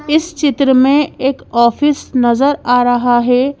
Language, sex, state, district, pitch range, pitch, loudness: Hindi, female, Madhya Pradesh, Bhopal, 245-290 Hz, 265 Hz, -13 LUFS